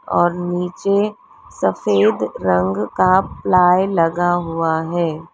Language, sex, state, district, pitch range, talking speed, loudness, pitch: Hindi, female, Uttar Pradesh, Lalitpur, 165-185 Hz, 100 wpm, -17 LUFS, 175 Hz